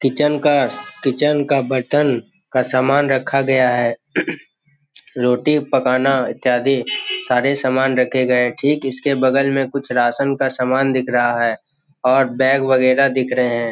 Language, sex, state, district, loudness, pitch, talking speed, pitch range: Hindi, male, Bihar, Jamui, -17 LUFS, 135 Hz, 155 wpm, 125-140 Hz